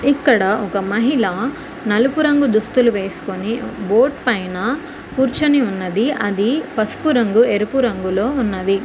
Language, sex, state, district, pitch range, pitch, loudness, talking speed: Telugu, female, Telangana, Mahabubabad, 205-265 Hz, 235 Hz, -17 LUFS, 115 wpm